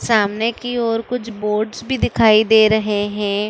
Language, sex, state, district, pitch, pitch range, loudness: Hindi, female, Uttar Pradesh, Budaun, 220 Hz, 210-230 Hz, -17 LUFS